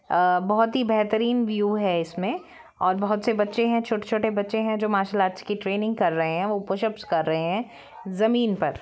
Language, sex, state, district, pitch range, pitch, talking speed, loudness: Hindi, female, Jharkhand, Jamtara, 190-225 Hz, 210 Hz, 210 wpm, -24 LUFS